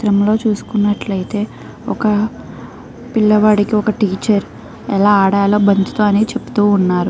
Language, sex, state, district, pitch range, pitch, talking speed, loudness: Telugu, female, Andhra Pradesh, Krishna, 200-215 Hz, 210 Hz, 125 wpm, -15 LUFS